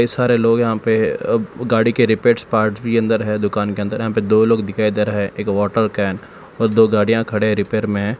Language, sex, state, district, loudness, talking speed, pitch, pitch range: Hindi, male, Telangana, Hyderabad, -17 LUFS, 210 wpm, 110 Hz, 105-115 Hz